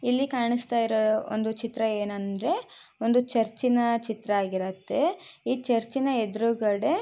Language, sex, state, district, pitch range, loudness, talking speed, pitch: Kannada, female, Karnataka, Shimoga, 215-250 Hz, -27 LUFS, 110 wpm, 230 Hz